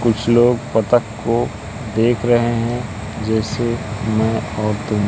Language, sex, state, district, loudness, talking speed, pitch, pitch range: Hindi, male, Madhya Pradesh, Katni, -18 LUFS, 130 wpm, 110 Hz, 110-120 Hz